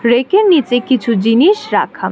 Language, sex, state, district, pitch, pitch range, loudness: Bengali, female, West Bengal, Alipurduar, 250 Hz, 235-365 Hz, -12 LUFS